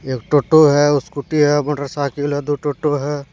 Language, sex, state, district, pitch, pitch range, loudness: Hindi, male, Jharkhand, Deoghar, 145 Hz, 140-145 Hz, -17 LUFS